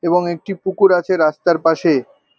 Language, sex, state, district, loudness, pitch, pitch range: Bengali, male, West Bengal, North 24 Parganas, -16 LUFS, 175 Hz, 165-190 Hz